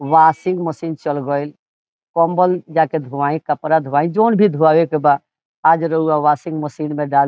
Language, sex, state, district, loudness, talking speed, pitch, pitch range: Bhojpuri, male, Bihar, Saran, -17 LUFS, 190 wpm, 155 Hz, 150-165 Hz